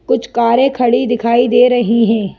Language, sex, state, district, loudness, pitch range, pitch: Hindi, female, Madhya Pradesh, Bhopal, -12 LUFS, 230-245 Hz, 235 Hz